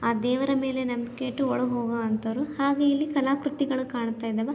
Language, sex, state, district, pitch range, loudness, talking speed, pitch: Kannada, female, Karnataka, Belgaum, 235-275 Hz, -27 LUFS, 170 wpm, 260 Hz